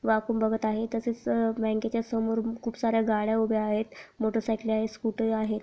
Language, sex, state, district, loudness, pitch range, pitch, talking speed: Marathi, female, Maharashtra, Pune, -28 LUFS, 220-230 Hz, 225 Hz, 170 wpm